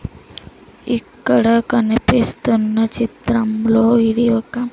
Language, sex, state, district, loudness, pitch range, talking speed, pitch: Telugu, female, Andhra Pradesh, Sri Satya Sai, -16 LUFS, 225-235 Hz, 75 wpm, 230 Hz